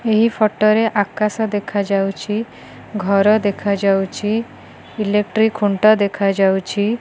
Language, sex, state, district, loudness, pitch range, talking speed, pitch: Odia, female, Odisha, Khordha, -17 LUFS, 200-215 Hz, 85 wpm, 210 Hz